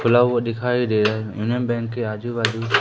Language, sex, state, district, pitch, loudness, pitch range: Hindi, male, Madhya Pradesh, Umaria, 115 Hz, -21 LUFS, 110-120 Hz